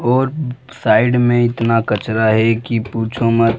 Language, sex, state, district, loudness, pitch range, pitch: Hindi, male, Bihar, Jamui, -16 LUFS, 115-125 Hz, 115 Hz